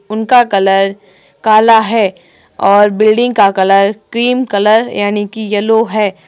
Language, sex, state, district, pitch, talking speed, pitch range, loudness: Hindi, female, Uttar Pradesh, Saharanpur, 210 Hz, 135 wpm, 195-220 Hz, -11 LUFS